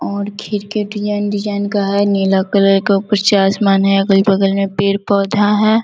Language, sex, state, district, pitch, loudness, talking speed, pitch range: Hindi, female, Bihar, Vaishali, 200 Hz, -14 LUFS, 175 wpm, 195-205 Hz